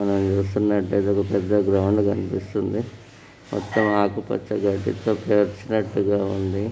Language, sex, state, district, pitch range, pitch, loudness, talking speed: Telugu, male, Andhra Pradesh, Srikakulam, 100-105 Hz, 100 Hz, -22 LUFS, 90 wpm